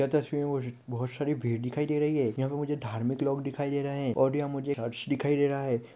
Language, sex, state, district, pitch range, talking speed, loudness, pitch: Hindi, male, Andhra Pradesh, Srikakulam, 125-145 Hz, 290 wpm, -30 LUFS, 140 Hz